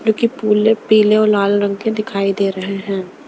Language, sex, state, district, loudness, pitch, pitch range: Hindi, female, Maharashtra, Mumbai Suburban, -16 LUFS, 210 Hz, 195-215 Hz